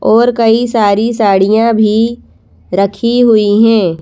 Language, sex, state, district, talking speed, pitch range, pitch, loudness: Hindi, female, Madhya Pradesh, Bhopal, 120 wpm, 205-230 Hz, 220 Hz, -10 LUFS